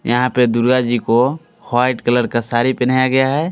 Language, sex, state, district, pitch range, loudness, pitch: Hindi, male, Bihar, West Champaran, 120-130 Hz, -16 LUFS, 125 Hz